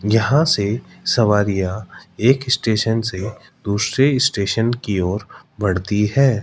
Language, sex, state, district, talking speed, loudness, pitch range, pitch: Hindi, male, Rajasthan, Jaipur, 110 wpm, -18 LUFS, 100-125 Hz, 110 Hz